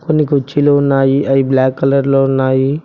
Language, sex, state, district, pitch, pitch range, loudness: Telugu, male, Telangana, Mahabubabad, 135 Hz, 135-140 Hz, -13 LUFS